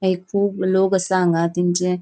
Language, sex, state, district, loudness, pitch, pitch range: Konkani, female, Goa, North and South Goa, -19 LUFS, 185 Hz, 175-190 Hz